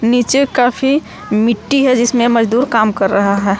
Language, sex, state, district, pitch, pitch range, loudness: Hindi, female, Jharkhand, Palamu, 235 Hz, 210-260 Hz, -13 LUFS